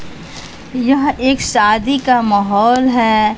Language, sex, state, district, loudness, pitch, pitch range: Hindi, female, Bihar, West Champaran, -13 LUFS, 245 Hz, 215-265 Hz